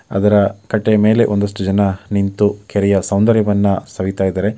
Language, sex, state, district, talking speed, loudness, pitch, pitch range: Kannada, male, Karnataka, Mysore, 145 wpm, -15 LUFS, 100 Hz, 100-105 Hz